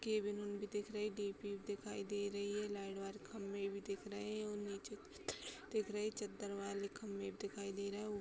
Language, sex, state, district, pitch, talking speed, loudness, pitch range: Hindi, female, Uttar Pradesh, Hamirpur, 205 Hz, 240 wpm, -45 LUFS, 200-210 Hz